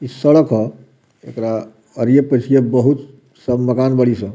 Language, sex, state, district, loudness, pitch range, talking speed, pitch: Bhojpuri, male, Bihar, Muzaffarpur, -16 LUFS, 115-135 Hz, 165 wpm, 125 Hz